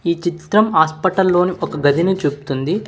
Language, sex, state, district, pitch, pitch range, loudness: Telugu, male, Telangana, Hyderabad, 170 Hz, 155-190 Hz, -17 LUFS